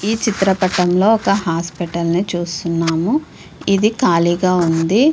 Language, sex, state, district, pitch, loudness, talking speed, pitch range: Telugu, female, Andhra Pradesh, Visakhapatnam, 180 Hz, -16 LUFS, 115 wpm, 170-210 Hz